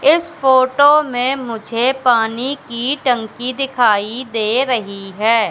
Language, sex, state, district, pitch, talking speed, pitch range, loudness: Hindi, female, Madhya Pradesh, Katni, 245 Hz, 120 wpm, 230-265 Hz, -16 LUFS